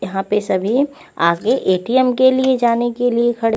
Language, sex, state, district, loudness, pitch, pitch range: Hindi, female, Chandigarh, Chandigarh, -16 LUFS, 235 Hz, 200-260 Hz